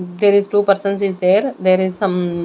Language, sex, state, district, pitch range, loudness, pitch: English, female, Punjab, Kapurthala, 185-200 Hz, -16 LUFS, 195 Hz